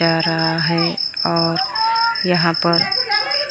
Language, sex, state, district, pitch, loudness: Hindi, male, Maharashtra, Gondia, 170 Hz, -16 LUFS